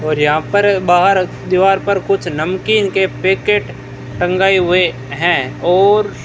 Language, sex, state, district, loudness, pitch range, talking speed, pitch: Hindi, male, Rajasthan, Bikaner, -14 LUFS, 175-195 Hz, 145 wpm, 185 Hz